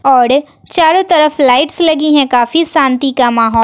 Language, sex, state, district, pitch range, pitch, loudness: Hindi, female, Bihar, West Champaran, 250-315 Hz, 275 Hz, -10 LUFS